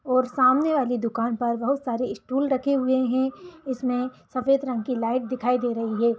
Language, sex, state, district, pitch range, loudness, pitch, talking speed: Hindi, female, Chhattisgarh, Raigarh, 240-265 Hz, -24 LUFS, 255 Hz, 195 wpm